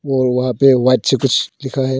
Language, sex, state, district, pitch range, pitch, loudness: Hindi, male, Arunachal Pradesh, Longding, 130-135 Hz, 130 Hz, -15 LUFS